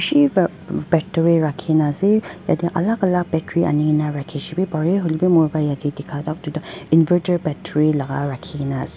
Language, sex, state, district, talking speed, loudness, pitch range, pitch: Nagamese, female, Nagaland, Dimapur, 185 wpm, -19 LUFS, 150-175 Hz, 160 Hz